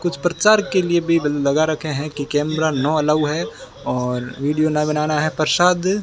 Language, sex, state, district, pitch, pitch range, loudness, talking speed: Hindi, male, Rajasthan, Bikaner, 155 Hz, 145-170 Hz, -19 LUFS, 200 wpm